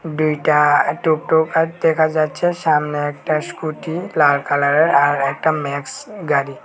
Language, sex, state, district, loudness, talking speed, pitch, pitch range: Bengali, male, Tripura, West Tripura, -17 LUFS, 115 wpm, 155 Hz, 145-160 Hz